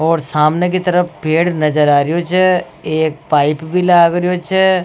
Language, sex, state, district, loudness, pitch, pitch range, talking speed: Rajasthani, female, Rajasthan, Nagaur, -14 LUFS, 170 Hz, 155-180 Hz, 200 wpm